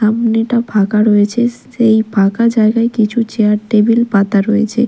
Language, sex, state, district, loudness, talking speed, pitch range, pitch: Bengali, female, Odisha, Malkangiri, -13 LUFS, 135 wpm, 210-235 Hz, 220 Hz